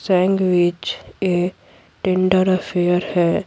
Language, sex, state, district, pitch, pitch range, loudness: Hindi, female, Bihar, Patna, 185 Hz, 175-185 Hz, -19 LUFS